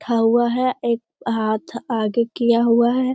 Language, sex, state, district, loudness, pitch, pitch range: Hindi, female, Bihar, Jamui, -20 LUFS, 235 Hz, 230-240 Hz